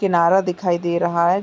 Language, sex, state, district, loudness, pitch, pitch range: Hindi, female, Chhattisgarh, Raigarh, -19 LUFS, 175 Hz, 170-185 Hz